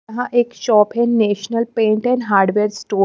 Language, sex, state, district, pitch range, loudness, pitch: Hindi, female, Punjab, Pathankot, 210-235 Hz, -17 LUFS, 220 Hz